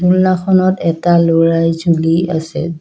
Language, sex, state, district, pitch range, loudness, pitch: Assamese, female, Assam, Kamrup Metropolitan, 165-180 Hz, -13 LUFS, 165 Hz